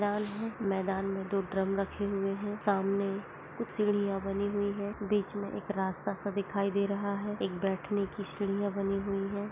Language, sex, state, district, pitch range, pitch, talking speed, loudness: Hindi, female, Jharkhand, Jamtara, 195-205 Hz, 200 Hz, 195 wpm, -33 LUFS